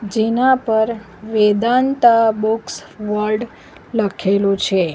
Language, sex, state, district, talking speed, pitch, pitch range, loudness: Gujarati, female, Gujarat, Valsad, 85 wpm, 220 Hz, 210-230 Hz, -17 LUFS